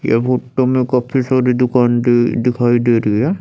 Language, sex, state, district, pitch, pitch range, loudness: Hindi, male, Chandigarh, Chandigarh, 125 Hz, 120-130 Hz, -15 LUFS